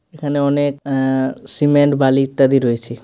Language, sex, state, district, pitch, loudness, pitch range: Bengali, male, West Bengal, North 24 Parganas, 135 Hz, -16 LUFS, 135-145 Hz